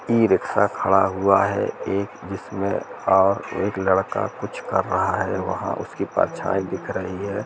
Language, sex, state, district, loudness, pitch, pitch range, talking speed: Hindi, male, Jharkhand, Jamtara, -22 LUFS, 100 Hz, 95-100 Hz, 155 wpm